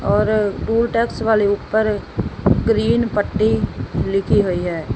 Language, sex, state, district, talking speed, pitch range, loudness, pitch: Punjabi, female, Punjab, Fazilka, 120 wpm, 200-220 Hz, -18 LUFS, 210 Hz